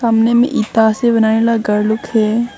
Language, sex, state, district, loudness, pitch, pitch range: Hindi, female, Arunachal Pradesh, Longding, -14 LUFS, 225 Hz, 220-235 Hz